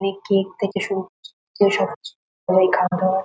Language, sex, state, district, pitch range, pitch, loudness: Bengali, female, West Bengal, North 24 Parganas, 185-200 Hz, 195 Hz, -20 LUFS